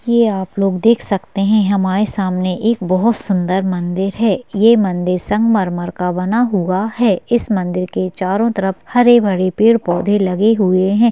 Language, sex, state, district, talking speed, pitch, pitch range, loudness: Hindi, female, Bihar, Darbhanga, 160 wpm, 195 Hz, 185-225 Hz, -15 LUFS